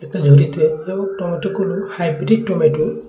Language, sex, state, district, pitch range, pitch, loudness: Bengali, male, Tripura, West Tripura, 155-195 Hz, 170 Hz, -17 LUFS